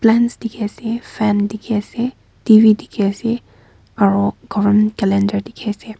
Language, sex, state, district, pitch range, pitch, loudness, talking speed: Nagamese, female, Nagaland, Kohima, 205-230 Hz, 215 Hz, -17 LUFS, 140 wpm